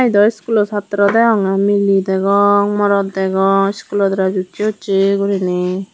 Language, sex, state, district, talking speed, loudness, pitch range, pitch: Chakma, female, Tripura, Dhalai, 140 wpm, -15 LUFS, 195-205 Hz, 200 Hz